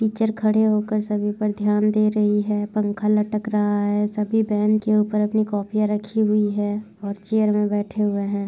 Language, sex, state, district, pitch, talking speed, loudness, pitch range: Hindi, female, Bihar, Saharsa, 210 Hz, 205 wpm, -21 LUFS, 205-215 Hz